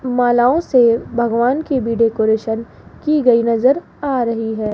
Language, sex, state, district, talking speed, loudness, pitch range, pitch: Hindi, female, Rajasthan, Jaipur, 150 wpm, -16 LUFS, 230-260 Hz, 240 Hz